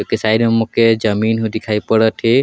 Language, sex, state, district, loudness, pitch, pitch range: Sadri, male, Chhattisgarh, Jashpur, -15 LUFS, 110 Hz, 110-115 Hz